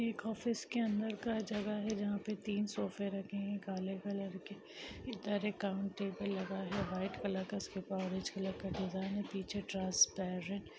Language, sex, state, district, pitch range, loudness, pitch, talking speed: Hindi, female, Chhattisgarh, Sarguja, 190-210 Hz, -39 LUFS, 200 Hz, 185 wpm